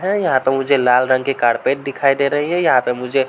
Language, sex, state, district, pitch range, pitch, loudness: Hindi, male, Uttar Pradesh, Varanasi, 130-140 Hz, 135 Hz, -16 LUFS